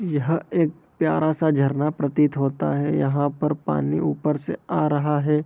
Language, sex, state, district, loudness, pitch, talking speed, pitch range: Hindi, male, Bihar, Begusarai, -22 LUFS, 150 Hz, 175 wpm, 140-155 Hz